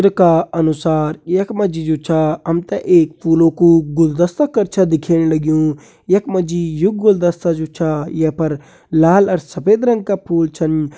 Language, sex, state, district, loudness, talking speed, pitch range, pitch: Kumaoni, male, Uttarakhand, Uttarkashi, -15 LUFS, 185 wpm, 160-185 Hz, 165 Hz